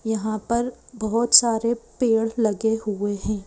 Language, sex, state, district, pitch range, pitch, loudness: Hindi, female, Madhya Pradesh, Bhopal, 215-235 Hz, 225 Hz, -21 LUFS